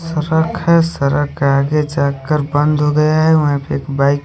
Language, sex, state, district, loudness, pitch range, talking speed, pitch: Hindi, male, Odisha, Khordha, -15 LUFS, 140-155 Hz, 200 wpm, 150 Hz